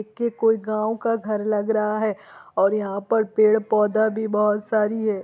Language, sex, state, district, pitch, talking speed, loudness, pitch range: Hindi, female, Bihar, Kishanganj, 215 Hz, 185 wpm, -22 LUFS, 210-220 Hz